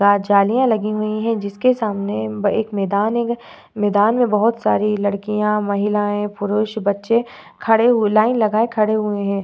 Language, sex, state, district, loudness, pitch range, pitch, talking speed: Hindi, female, Uttar Pradesh, Budaun, -18 LUFS, 205-225 Hz, 210 Hz, 160 wpm